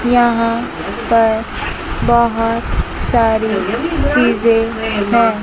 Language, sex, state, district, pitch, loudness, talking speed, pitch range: Hindi, female, Chandigarh, Chandigarh, 230 Hz, -15 LUFS, 65 wpm, 225-235 Hz